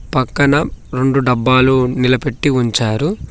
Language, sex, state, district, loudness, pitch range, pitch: Telugu, male, Telangana, Mahabubabad, -15 LUFS, 125-140 Hz, 130 Hz